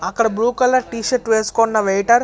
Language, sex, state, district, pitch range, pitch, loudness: Telugu, male, Andhra Pradesh, Chittoor, 220-245 Hz, 230 Hz, -17 LUFS